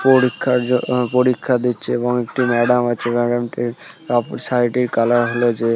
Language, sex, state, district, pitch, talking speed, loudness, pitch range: Bengali, male, West Bengal, Purulia, 120 Hz, 155 wpm, -18 LUFS, 120-125 Hz